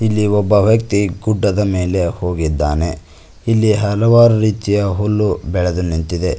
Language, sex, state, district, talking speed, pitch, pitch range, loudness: Kannada, male, Karnataka, Koppal, 110 wpm, 100 Hz, 90-105 Hz, -15 LUFS